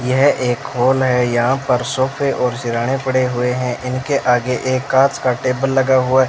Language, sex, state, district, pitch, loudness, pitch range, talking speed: Hindi, male, Rajasthan, Bikaner, 130 Hz, -17 LUFS, 125-135 Hz, 200 wpm